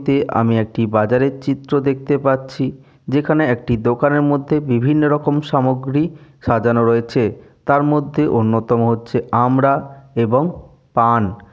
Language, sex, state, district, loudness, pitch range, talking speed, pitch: Bengali, male, West Bengal, Jalpaiguri, -17 LUFS, 115-145 Hz, 125 wpm, 135 Hz